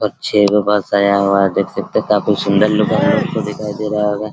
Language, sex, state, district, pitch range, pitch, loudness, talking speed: Hindi, male, Bihar, Araria, 100-105 Hz, 105 Hz, -15 LUFS, 205 wpm